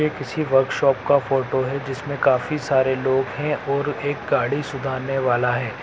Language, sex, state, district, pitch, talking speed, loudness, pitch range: Hindi, male, Bihar, Saran, 135 Hz, 175 wpm, -21 LUFS, 130-145 Hz